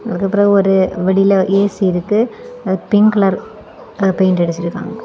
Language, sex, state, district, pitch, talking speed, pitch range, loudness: Tamil, female, Tamil Nadu, Kanyakumari, 195 Hz, 130 wpm, 190-205 Hz, -14 LUFS